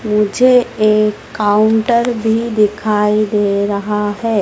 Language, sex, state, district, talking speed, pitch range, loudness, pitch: Hindi, female, Madhya Pradesh, Dhar, 110 wpm, 210-225 Hz, -14 LUFS, 215 Hz